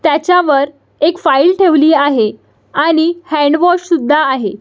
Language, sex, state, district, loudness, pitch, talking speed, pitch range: Marathi, female, Maharashtra, Solapur, -12 LUFS, 310 Hz, 145 wpm, 285-345 Hz